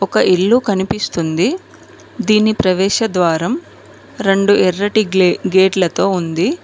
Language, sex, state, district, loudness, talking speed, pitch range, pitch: Telugu, female, Telangana, Mahabubabad, -15 LUFS, 100 wpm, 185-215 Hz, 195 Hz